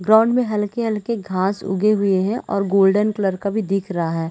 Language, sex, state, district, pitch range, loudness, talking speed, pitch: Hindi, female, Chhattisgarh, Raigarh, 190-215 Hz, -19 LUFS, 195 wpm, 200 Hz